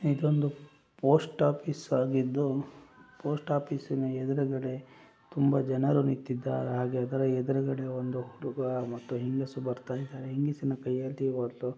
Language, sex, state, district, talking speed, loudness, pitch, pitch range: Kannada, male, Karnataka, Chamarajanagar, 105 wpm, -31 LUFS, 135 Hz, 130-145 Hz